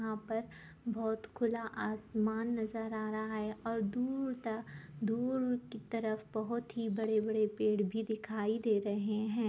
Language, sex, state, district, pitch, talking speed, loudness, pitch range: Hindi, female, Jharkhand, Sahebganj, 220 Hz, 150 wpm, -36 LUFS, 215-230 Hz